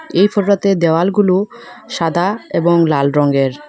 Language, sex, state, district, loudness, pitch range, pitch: Bengali, female, Assam, Hailakandi, -14 LUFS, 160-200 Hz, 180 Hz